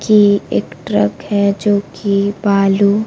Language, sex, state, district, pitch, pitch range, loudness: Hindi, female, Bihar, Kaimur, 200 Hz, 200-205 Hz, -15 LUFS